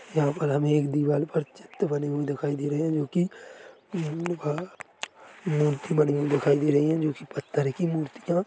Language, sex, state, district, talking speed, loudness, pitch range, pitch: Hindi, male, Chhattisgarh, Korba, 205 wpm, -27 LUFS, 145-170 Hz, 150 Hz